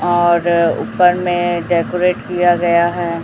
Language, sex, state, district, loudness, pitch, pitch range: Hindi, male, Chhattisgarh, Raipur, -15 LUFS, 175 Hz, 170-175 Hz